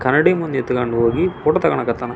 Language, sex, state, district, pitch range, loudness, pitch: Kannada, male, Karnataka, Belgaum, 120-135 Hz, -18 LUFS, 125 Hz